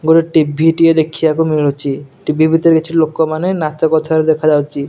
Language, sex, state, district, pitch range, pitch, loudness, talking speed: Odia, male, Odisha, Nuapada, 155-160 Hz, 160 Hz, -13 LUFS, 145 wpm